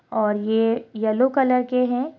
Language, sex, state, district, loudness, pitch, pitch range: Hindi, female, Bihar, Purnia, -21 LUFS, 245 Hz, 220-255 Hz